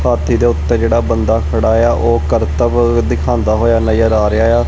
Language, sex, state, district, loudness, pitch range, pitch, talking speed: Punjabi, male, Punjab, Kapurthala, -13 LUFS, 110-115 Hz, 115 Hz, 220 wpm